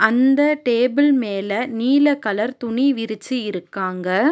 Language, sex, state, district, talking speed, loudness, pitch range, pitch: Tamil, female, Tamil Nadu, Nilgiris, 110 wpm, -19 LUFS, 210-275 Hz, 240 Hz